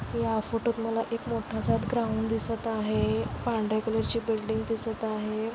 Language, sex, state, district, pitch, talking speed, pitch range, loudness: Marathi, female, Maharashtra, Dhule, 220 Hz, 140 wpm, 215-225 Hz, -29 LUFS